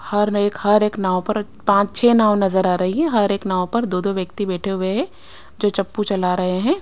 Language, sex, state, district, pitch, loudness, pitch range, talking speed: Hindi, female, Himachal Pradesh, Shimla, 200 Hz, -19 LUFS, 185-210 Hz, 245 wpm